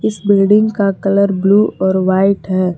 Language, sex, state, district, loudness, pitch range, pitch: Hindi, female, Jharkhand, Palamu, -13 LUFS, 190-205 Hz, 195 Hz